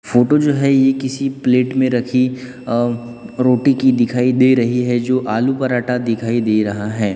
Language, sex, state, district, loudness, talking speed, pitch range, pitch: Hindi, male, Maharashtra, Gondia, -16 LUFS, 185 wpm, 120-130 Hz, 125 Hz